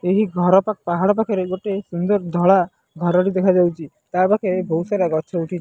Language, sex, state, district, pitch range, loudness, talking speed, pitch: Odia, male, Odisha, Nuapada, 175-195 Hz, -19 LUFS, 180 wpm, 185 Hz